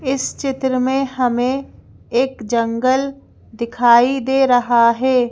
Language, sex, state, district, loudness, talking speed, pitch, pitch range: Hindi, female, Madhya Pradesh, Bhopal, -17 LUFS, 115 wpm, 255 Hz, 240-265 Hz